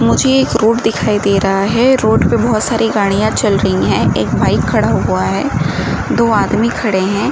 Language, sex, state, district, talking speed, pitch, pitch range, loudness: Hindi, female, Uttar Pradesh, Gorakhpur, 195 wpm, 220 Hz, 200-230 Hz, -13 LUFS